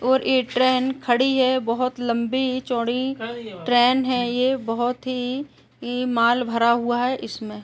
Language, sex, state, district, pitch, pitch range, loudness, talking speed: Hindi, female, Uttar Pradesh, Etah, 245 Hz, 235-255 Hz, -22 LUFS, 150 wpm